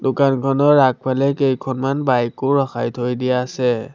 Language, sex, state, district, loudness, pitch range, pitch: Assamese, male, Assam, Sonitpur, -18 LUFS, 125-135 Hz, 130 Hz